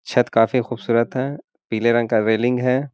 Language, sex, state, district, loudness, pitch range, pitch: Hindi, male, Bihar, Gaya, -20 LUFS, 115-125 Hz, 120 Hz